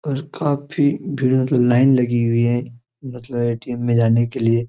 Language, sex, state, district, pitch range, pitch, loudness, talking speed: Hindi, male, Jharkhand, Jamtara, 120-135 Hz, 125 Hz, -19 LUFS, 190 wpm